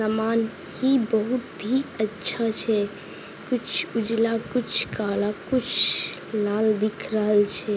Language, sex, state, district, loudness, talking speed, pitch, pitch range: Maithili, female, Bihar, Begusarai, -23 LUFS, 115 wpm, 220 Hz, 210-230 Hz